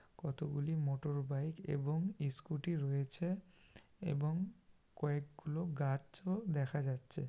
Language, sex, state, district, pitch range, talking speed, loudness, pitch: Bengali, male, West Bengal, Malda, 140-170 Hz, 80 wpm, -40 LUFS, 150 Hz